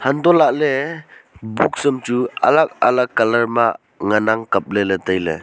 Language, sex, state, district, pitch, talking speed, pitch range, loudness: Wancho, male, Arunachal Pradesh, Longding, 115 Hz, 155 wpm, 100-125 Hz, -17 LUFS